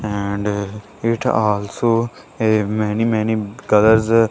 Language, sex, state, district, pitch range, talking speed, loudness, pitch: English, male, Punjab, Kapurthala, 105-115 Hz, 125 wpm, -18 LUFS, 110 Hz